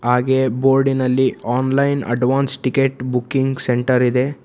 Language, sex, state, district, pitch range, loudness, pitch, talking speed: Kannada, male, Karnataka, Bangalore, 125-135 Hz, -18 LUFS, 130 Hz, 110 wpm